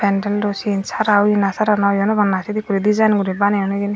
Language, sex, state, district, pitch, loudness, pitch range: Chakma, female, Tripura, Dhalai, 205 Hz, -17 LUFS, 200-210 Hz